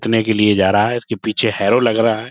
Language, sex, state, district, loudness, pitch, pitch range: Hindi, male, Uttar Pradesh, Budaun, -16 LUFS, 110 Hz, 105-115 Hz